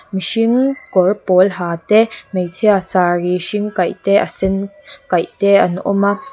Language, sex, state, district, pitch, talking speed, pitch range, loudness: Mizo, female, Mizoram, Aizawl, 195 Hz, 160 wpm, 180-210 Hz, -15 LUFS